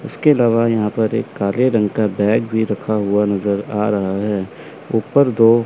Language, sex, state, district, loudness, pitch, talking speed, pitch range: Hindi, male, Chandigarh, Chandigarh, -17 LUFS, 110 Hz, 190 wpm, 100-115 Hz